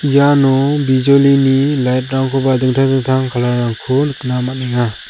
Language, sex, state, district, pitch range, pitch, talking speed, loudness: Garo, male, Meghalaya, South Garo Hills, 125-140 Hz, 135 Hz, 120 wpm, -14 LUFS